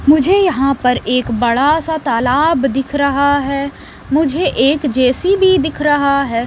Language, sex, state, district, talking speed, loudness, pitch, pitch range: Hindi, female, Bihar, West Champaran, 150 wpm, -14 LUFS, 280 Hz, 265-305 Hz